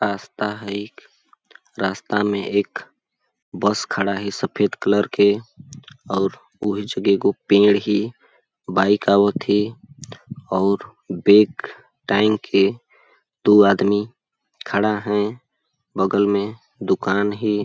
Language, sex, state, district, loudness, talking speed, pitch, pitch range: Awadhi, male, Chhattisgarh, Balrampur, -20 LUFS, 110 wpm, 100 Hz, 100-105 Hz